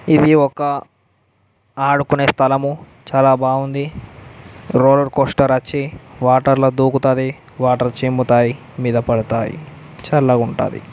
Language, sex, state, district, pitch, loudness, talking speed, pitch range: Telugu, male, Telangana, Karimnagar, 135 Hz, -16 LUFS, 100 wpm, 125-140 Hz